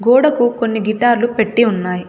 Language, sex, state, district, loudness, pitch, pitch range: Telugu, female, Telangana, Komaram Bheem, -15 LUFS, 235 Hz, 215-240 Hz